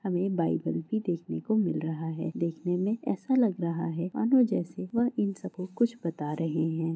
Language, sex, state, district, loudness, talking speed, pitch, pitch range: Hindi, female, Chhattisgarh, Korba, -29 LUFS, 200 wpm, 180 Hz, 165-220 Hz